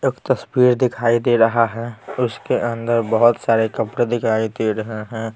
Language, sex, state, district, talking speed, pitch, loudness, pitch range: Hindi, male, Bihar, Patna, 180 wpm, 115 Hz, -19 LUFS, 110-120 Hz